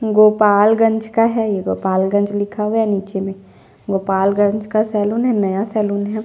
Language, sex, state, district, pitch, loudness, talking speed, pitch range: Hindi, female, Chhattisgarh, Jashpur, 205 Hz, -17 LUFS, 165 wpm, 200-215 Hz